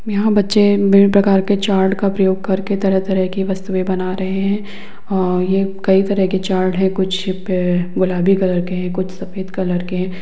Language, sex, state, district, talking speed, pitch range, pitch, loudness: Hindi, female, Bihar, Lakhisarai, 200 wpm, 185-200 Hz, 190 Hz, -17 LUFS